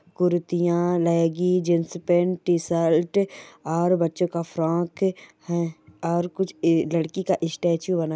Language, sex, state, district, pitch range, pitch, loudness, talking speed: Hindi, female, Chhattisgarh, Jashpur, 165-180 Hz, 175 Hz, -24 LUFS, 120 wpm